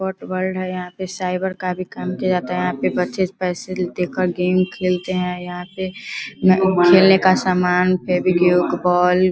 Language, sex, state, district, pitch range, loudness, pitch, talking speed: Hindi, female, Bihar, Vaishali, 180-185 Hz, -19 LUFS, 180 Hz, 180 wpm